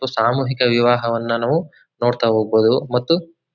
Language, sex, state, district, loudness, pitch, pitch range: Kannada, male, Karnataka, Chamarajanagar, -18 LUFS, 120 Hz, 115-135 Hz